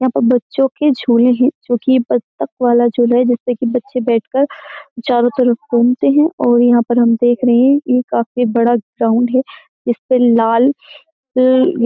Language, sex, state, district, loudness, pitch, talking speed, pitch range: Hindi, female, Uttar Pradesh, Jyotiba Phule Nagar, -14 LUFS, 245 Hz, 180 wpm, 240-260 Hz